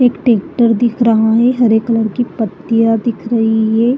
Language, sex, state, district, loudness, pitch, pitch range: Hindi, female, Uttar Pradesh, Jalaun, -13 LUFS, 230 Hz, 225-240 Hz